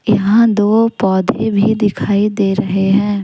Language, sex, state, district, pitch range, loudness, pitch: Hindi, female, Jharkhand, Deoghar, 200-220 Hz, -14 LUFS, 205 Hz